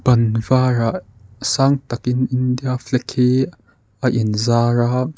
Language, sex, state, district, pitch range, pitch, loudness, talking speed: Mizo, male, Mizoram, Aizawl, 115-130 Hz, 125 Hz, -18 LUFS, 125 wpm